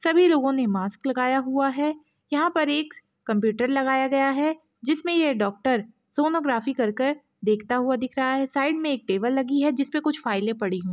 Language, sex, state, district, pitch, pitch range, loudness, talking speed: Hindi, female, Uttarakhand, Tehri Garhwal, 270 Hz, 235-295 Hz, -24 LUFS, 195 wpm